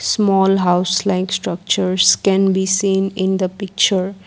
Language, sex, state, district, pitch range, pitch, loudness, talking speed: English, female, Assam, Kamrup Metropolitan, 185-195 Hz, 190 Hz, -16 LUFS, 140 wpm